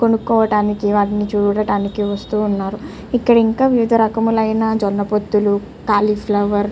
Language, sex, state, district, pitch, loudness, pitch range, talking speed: Telugu, female, Andhra Pradesh, Chittoor, 210 Hz, -17 LUFS, 205-225 Hz, 115 wpm